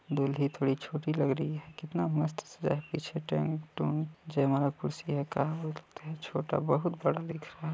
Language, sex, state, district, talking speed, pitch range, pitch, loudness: Chhattisgarhi, male, Chhattisgarh, Balrampur, 155 wpm, 145-160 Hz, 155 Hz, -33 LUFS